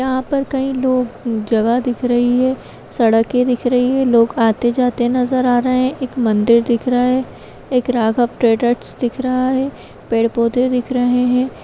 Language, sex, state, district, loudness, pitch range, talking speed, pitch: Hindi, female, Chhattisgarh, Kabirdham, -16 LUFS, 235-255 Hz, 185 wpm, 250 Hz